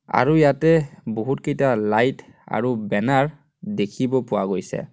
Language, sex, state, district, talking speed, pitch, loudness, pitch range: Assamese, male, Assam, Kamrup Metropolitan, 110 wpm, 135 Hz, -21 LUFS, 110-150 Hz